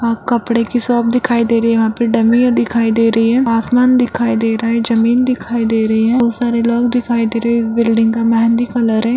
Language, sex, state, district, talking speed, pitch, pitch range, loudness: Hindi, female, Bihar, Jahanabad, 240 wpm, 230 Hz, 230-240 Hz, -14 LUFS